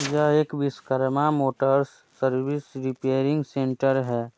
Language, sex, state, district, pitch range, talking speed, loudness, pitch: Hindi, male, Bihar, Muzaffarpur, 130-145 Hz, 110 wpm, -24 LUFS, 135 Hz